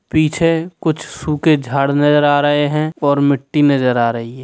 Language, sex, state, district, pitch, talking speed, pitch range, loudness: Hindi, male, Bihar, Sitamarhi, 145 Hz, 190 wpm, 140-155 Hz, -15 LUFS